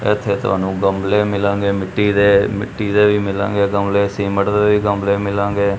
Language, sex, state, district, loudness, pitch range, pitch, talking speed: Punjabi, male, Punjab, Kapurthala, -16 LUFS, 100-105 Hz, 100 Hz, 165 wpm